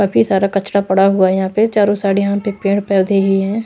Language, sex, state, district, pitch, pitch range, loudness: Hindi, female, Maharashtra, Washim, 200 Hz, 195-200 Hz, -15 LUFS